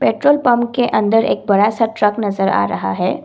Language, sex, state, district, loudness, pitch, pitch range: Hindi, female, Assam, Kamrup Metropolitan, -15 LUFS, 215 Hz, 200-240 Hz